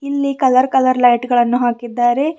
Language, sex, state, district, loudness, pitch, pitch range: Kannada, female, Karnataka, Bidar, -15 LUFS, 255 Hz, 240-270 Hz